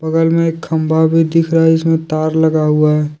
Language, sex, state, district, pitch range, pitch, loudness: Hindi, male, Jharkhand, Deoghar, 155-165 Hz, 160 Hz, -13 LUFS